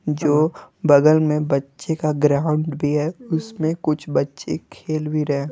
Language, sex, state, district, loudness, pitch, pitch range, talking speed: Hindi, male, Bihar, Patna, -20 LUFS, 155 Hz, 150-155 Hz, 165 wpm